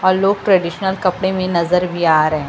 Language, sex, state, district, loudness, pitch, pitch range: Hindi, female, Uttar Pradesh, Lucknow, -16 LUFS, 185 Hz, 170-190 Hz